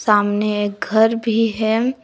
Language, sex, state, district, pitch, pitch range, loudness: Hindi, female, Jharkhand, Palamu, 220 Hz, 210-225 Hz, -18 LUFS